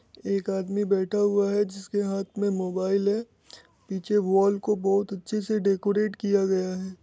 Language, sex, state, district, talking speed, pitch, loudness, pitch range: Hindi, male, Bihar, Muzaffarpur, 170 wpm, 200 Hz, -26 LUFS, 195-205 Hz